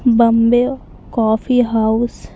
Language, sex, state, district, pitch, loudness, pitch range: Hindi, female, Maharashtra, Mumbai Suburban, 235 Hz, -15 LUFS, 225-245 Hz